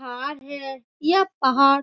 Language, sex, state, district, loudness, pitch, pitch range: Hindi, female, Bihar, Supaul, -21 LUFS, 275 Hz, 265-300 Hz